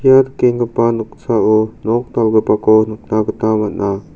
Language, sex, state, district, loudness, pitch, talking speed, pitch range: Garo, male, Meghalaya, South Garo Hills, -15 LUFS, 110 Hz, 115 wpm, 110-120 Hz